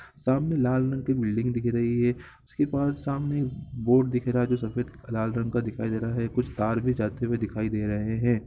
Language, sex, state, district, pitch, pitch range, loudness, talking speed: Hindi, male, Bihar, Gopalganj, 120 Hz, 115-130 Hz, -27 LUFS, 225 wpm